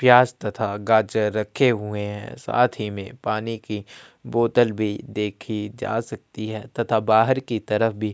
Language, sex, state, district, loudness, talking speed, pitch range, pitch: Hindi, male, Chhattisgarh, Kabirdham, -23 LUFS, 160 wpm, 105-115 Hz, 110 Hz